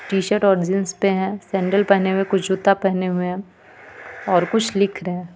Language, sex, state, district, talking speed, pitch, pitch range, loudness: Hindi, female, Jharkhand, Ranchi, 200 wpm, 190 Hz, 185-200 Hz, -19 LUFS